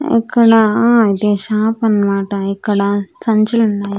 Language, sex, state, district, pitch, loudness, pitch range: Telugu, female, Andhra Pradesh, Sri Satya Sai, 215 Hz, -14 LUFS, 200-225 Hz